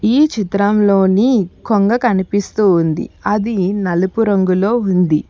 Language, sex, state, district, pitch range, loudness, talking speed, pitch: Telugu, female, Telangana, Hyderabad, 185-215 Hz, -15 LUFS, 100 wpm, 200 Hz